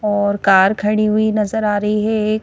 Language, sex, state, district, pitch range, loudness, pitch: Hindi, female, Madhya Pradesh, Bhopal, 205-215 Hz, -16 LUFS, 210 Hz